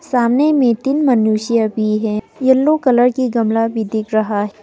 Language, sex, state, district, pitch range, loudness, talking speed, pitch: Hindi, female, Arunachal Pradesh, Papum Pare, 220-260 Hz, -15 LUFS, 180 wpm, 230 Hz